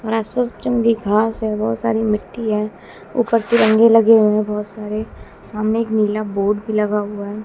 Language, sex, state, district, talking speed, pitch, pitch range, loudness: Hindi, female, Bihar, West Champaran, 185 wpm, 215 Hz, 210-225 Hz, -18 LUFS